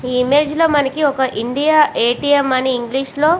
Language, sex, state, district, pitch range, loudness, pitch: Telugu, female, Andhra Pradesh, Visakhapatnam, 255-300 Hz, -15 LUFS, 280 Hz